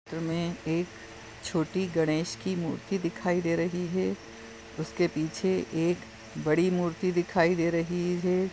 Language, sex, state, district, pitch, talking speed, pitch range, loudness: Hindi, male, Goa, North and South Goa, 170 Hz, 125 wpm, 155-180 Hz, -29 LUFS